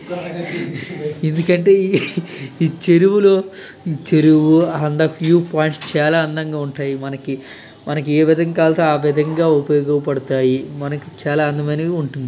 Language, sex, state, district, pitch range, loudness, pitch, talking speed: Telugu, male, Andhra Pradesh, Krishna, 145-170 Hz, -17 LUFS, 155 Hz, 90 wpm